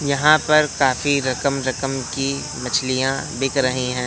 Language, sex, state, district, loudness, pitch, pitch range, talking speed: Hindi, male, Madhya Pradesh, Katni, -19 LUFS, 135 Hz, 130-140 Hz, 145 wpm